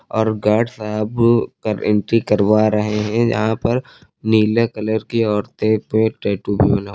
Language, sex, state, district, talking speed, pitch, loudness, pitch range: Hindi, male, Uttar Pradesh, Lucknow, 155 wpm, 110 Hz, -18 LUFS, 105-115 Hz